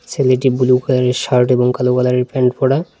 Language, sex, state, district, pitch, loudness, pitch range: Bengali, male, West Bengal, Cooch Behar, 125 Hz, -15 LUFS, 125-130 Hz